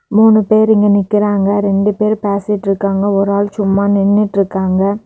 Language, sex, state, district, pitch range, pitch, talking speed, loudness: Tamil, female, Tamil Nadu, Kanyakumari, 195-210 Hz, 200 Hz, 155 wpm, -13 LUFS